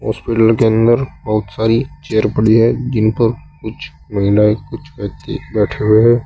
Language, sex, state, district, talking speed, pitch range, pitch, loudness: Hindi, male, Uttar Pradesh, Saharanpur, 165 wpm, 105-120 Hz, 110 Hz, -15 LUFS